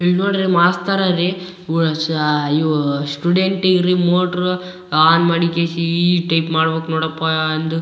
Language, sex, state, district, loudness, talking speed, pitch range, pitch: Kannada, male, Karnataka, Raichur, -17 LUFS, 130 wpm, 160-180 Hz, 170 Hz